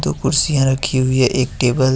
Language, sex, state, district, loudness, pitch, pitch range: Hindi, male, Jharkhand, Deoghar, -16 LUFS, 130 Hz, 130-135 Hz